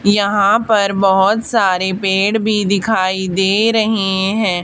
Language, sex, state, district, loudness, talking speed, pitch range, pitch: Hindi, female, Haryana, Charkhi Dadri, -14 LUFS, 130 wpm, 190-215 Hz, 200 Hz